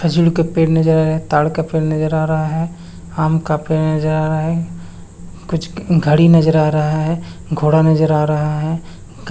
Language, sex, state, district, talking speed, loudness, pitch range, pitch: Hindi, male, Jharkhand, Sahebganj, 215 wpm, -16 LUFS, 155-165 Hz, 155 Hz